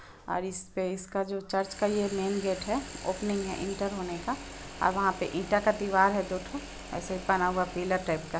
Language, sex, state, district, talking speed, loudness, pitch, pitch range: Hindi, female, Jharkhand, Sahebganj, 205 wpm, -30 LUFS, 190 Hz, 185-200 Hz